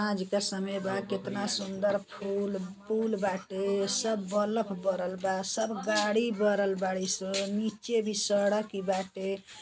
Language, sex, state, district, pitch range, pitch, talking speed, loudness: Bhojpuri, female, Uttar Pradesh, Gorakhpur, 195-210 Hz, 200 Hz, 145 wpm, -31 LUFS